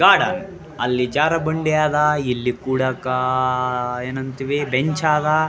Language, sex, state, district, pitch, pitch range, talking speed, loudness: Kannada, male, Karnataka, Raichur, 140 Hz, 125-155 Hz, 90 wpm, -20 LUFS